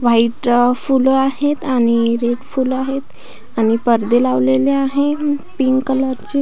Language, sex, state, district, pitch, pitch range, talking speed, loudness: Marathi, female, Maharashtra, Pune, 260 Hz, 235-270 Hz, 140 wpm, -16 LUFS